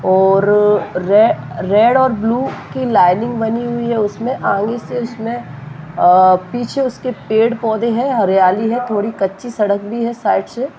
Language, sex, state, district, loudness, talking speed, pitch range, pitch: Hindi, male, Uttar Pradesh, Jalaun, -15 LUFS, 160 wpm, 195-240 Hz, 220 Hz